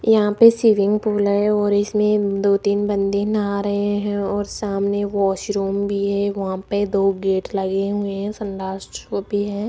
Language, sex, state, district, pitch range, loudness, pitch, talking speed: Hindi, female, Rajasthan, Jaipur, 200-205 Hz, -20 LUFS, 200 Hz, 175 wpm